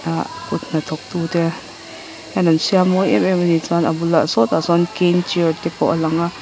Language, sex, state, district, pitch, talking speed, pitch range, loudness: Mizo, female, Mizoram, Aizawl, 170 Hz, 225 wpm, 160-175 Hz, -18 LUFS